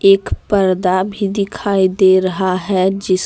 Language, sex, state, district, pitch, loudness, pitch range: Hindi, female, Jharkhand, Deoghar, 190 Hz, -15 LUFS, 185-200 Hz